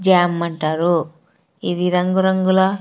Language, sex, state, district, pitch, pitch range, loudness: Telugu, female, Andhra Pradesh, Sri Satya Sai, 180 Hz, 170-190 Hz, -18 LUFS